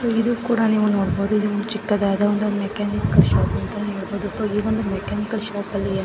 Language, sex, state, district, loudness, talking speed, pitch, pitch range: Kannada, female, Karnataka, Belgaum, -21 LUFS, 140 wpm, 210 Hz, 200-215 Hz